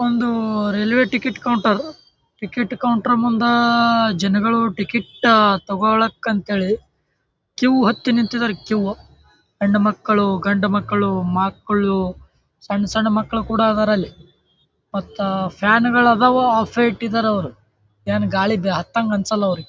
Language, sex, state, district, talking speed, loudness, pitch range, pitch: Kannada, male, Karnataka, Bijapur, 120 wpm, -18 LUFS, 200-235 Hz, 215 Hz